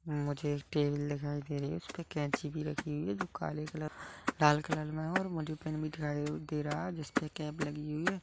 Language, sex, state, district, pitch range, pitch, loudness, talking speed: Hindi, male, Chhattisgarh, Kabirdham, 145-155 Hz, 150 Hz, -36 LUFS, 265 wpm